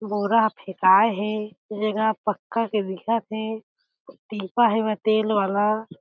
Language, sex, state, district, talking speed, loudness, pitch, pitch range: Chhattisgarhi, female, Chhattisgarh, Jashpur, 140 wpm, -23 LUFS, 215 Hz, 205-220 Hz